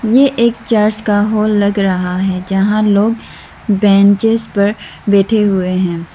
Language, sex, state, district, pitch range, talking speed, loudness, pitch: Hindi, female, Arunachal Pradesh, Lower Dibang Valley, 195-220 Hz, 145 wpm, -13 LUFS, 205 Hz